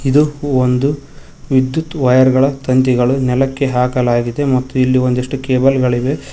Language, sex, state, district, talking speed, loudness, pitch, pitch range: Kannada, male, Karnataka, Koppal, 125 wpm, -14 LUFS, 130 Hz, 125-140 Hz